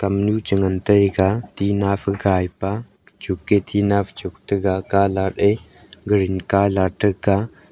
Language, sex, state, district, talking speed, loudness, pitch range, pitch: Wancho, male, Arunachal Pradesh, Longding, 140 wpm, -20 LUFS, 95-100 Hz, 100 Hz